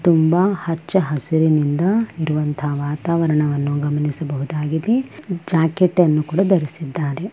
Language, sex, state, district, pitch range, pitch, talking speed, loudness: Kannada, female, Karnataka, Bellary, 150-175 Hz, 160 Hz, 80 wpm, -19 LUFS